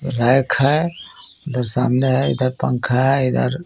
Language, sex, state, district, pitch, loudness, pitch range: Hindi, male, Jharkhand, Garhwa, 130 Hz, -17 LUFS, 125-135 Hz